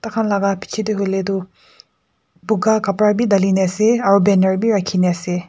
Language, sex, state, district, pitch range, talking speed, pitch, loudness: Nagamese, female, Nagaland, Kohima, 190-215 Hz, 165 wpm, 200 Hz, -17 LUFS